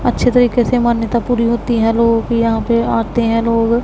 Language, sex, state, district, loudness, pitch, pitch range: Hindi, female, Punjab, Pathankot, -14 LUFS, 235 Hz, 230-240 Hz